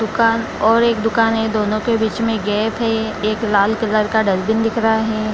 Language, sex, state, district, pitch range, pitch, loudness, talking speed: Hindi, female, Bihar, Lakhisarai, 215-225 Hz, 220 Hz, -17 LUFS, 215 wpm